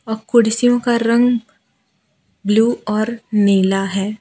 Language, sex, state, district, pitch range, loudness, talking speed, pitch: Hindi, female, Gujarat, Valsad, 205-235 Hz, -16 LUFS, 115 wpm, 220 Hz